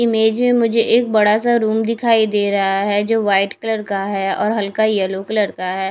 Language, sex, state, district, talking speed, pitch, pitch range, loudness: Hindi, female, Punjab, Kapurthala, 225 wpm, 215 Hz, 200-225 Hz, -16 LUFS